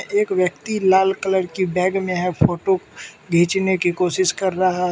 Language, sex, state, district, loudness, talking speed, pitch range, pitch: Hindi, male, Mizoram, Aizawl, -19 LUFS, 185 wpm, 180-190 Hz, 185 Hz